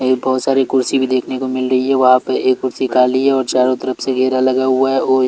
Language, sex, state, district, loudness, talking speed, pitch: Hindi, male, Chhattisgarh, Raipur, -15 LUFS, 285 wpm, 130 Hz